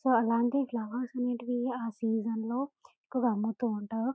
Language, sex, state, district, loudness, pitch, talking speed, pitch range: Telugu, female, Telangana, Karimnagar, -32 LUFS, 240 Hz, 115 wpm, 225-250 Hz